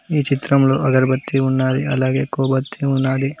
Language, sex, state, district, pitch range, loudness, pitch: Telugu, male, Telangana, Mahabubabad, 130-140 Hz, -18 LUFS, 135 Hz